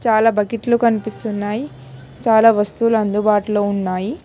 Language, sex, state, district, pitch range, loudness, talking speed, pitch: Telugu, female, Telangana, Hyderabad, 205-225 Hz, -17 LUFS, 100 wpm, 215 Hz